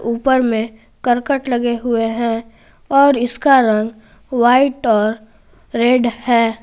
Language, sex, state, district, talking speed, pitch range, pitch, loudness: Hindi, female, Jharkhand, Garhwa, 120 wpm, 225-255 Hz, 235 Hz, -16 LUFS